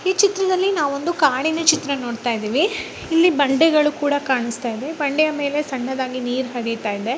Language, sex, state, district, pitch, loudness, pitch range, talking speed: Kannada, female, Karnataka, Bijapur, 285 Hz, -20 LUFS, 255-315 Hz, 160 wpm